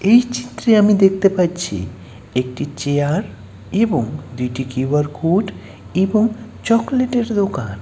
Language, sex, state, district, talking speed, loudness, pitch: Bengali, male, West Bengal, Malda, 105 wpm, -18 LUFS, 180 Hz